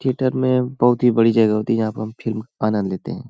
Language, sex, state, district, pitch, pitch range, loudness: Hindi, male, Uttar Pradesh, Hamirpur, 115 Hz, 110-125 Hz, -19 LUFS